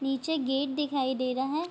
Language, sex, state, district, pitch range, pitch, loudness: Hindi, female, Bihar, Bhagalpur, 265-295 Hz, 270 Hz, -29 LUFS